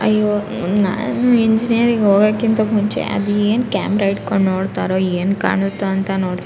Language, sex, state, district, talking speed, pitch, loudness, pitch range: Kannada, female, Karnataka, Raichur, 140 wpm, 205 Hz, -17 LUFS, 195-215 Hz